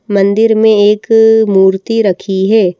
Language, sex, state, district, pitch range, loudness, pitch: Hindi, female, Madhya Pradesh, Bhopal, 195-220 Hz, -10 LUFS, 210 Hz